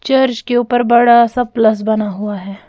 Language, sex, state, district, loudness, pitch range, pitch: Hindi, female, Bihar, Patna, -13 LUFS, 215-245 Hz, 235 Hz